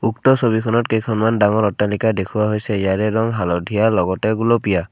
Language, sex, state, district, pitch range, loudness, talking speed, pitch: Assamese, male, Assam, Kamrup Metropolitan, 105-115 Hz, -18 LUFS, 145 wpm, 110 Hz